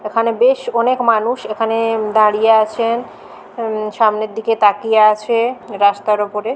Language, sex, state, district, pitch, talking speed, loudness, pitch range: Bengali, female, West Bengal, Kolkata, 220 Hz, 130 wpm, -15 LUFS, 215-230 Hz